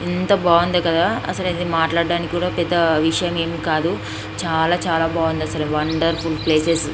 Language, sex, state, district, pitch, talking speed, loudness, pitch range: Telugu, female, Andhra Pradesh, Srikakulam, 165 Hz, 140 wpm, -19 LUFS, 160-175 Hz